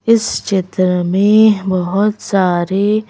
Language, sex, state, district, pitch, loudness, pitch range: Hindi, female, Madhya Pradesh, Bhopal, 195 Hz, -14 LUFS, 185-215 Hz